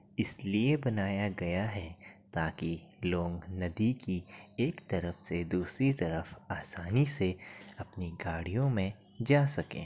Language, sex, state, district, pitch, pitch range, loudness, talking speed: Hindi, male, Uttar Pradesh, Etah, 100 Hz, 90-110 Hz, -33 LUFS, 120 wpm